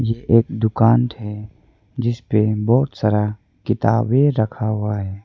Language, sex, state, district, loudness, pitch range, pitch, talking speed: Hindi, male, Arunachal Pradesh, Lower Dibang Valley, -19 LUFS, 105-120 Hz, 110 Hz, 125 wpm